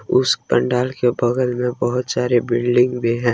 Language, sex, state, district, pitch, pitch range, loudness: Hindi, male, Jharkhand, Ranchi, 125 Hz, 120-125 Hz, -18 LUFS